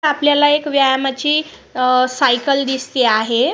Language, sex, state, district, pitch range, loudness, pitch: Marathi, female, Maharashtra, Sindhudurg, 255-290 Hz, -15 LUFS, 270 Hz